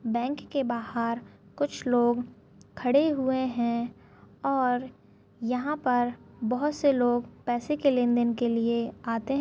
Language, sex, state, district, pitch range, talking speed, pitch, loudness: Hindi, female, Chhattisgarh, Balrampur, 235-270 Hz, 135 wpm, 245 Hz, -28 LUFS